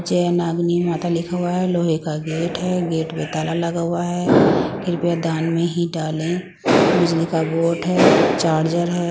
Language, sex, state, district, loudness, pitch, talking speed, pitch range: Hindi, female, Punjab, Pathankot, -19 LUFS, 170 Hz, 185 wpm, 165-175 Hz